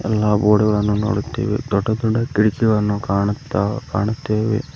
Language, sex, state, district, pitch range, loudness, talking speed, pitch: Kannada, male, Karnataka, Koppal, 105-110 Hz, -19 LUFS, 115 wpm, 105 Hz